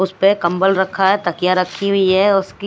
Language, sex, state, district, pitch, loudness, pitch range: Hindi, female, Himachal Pradesh, Shimla, 190 Hz, -15 LUFS, 185-195 Hz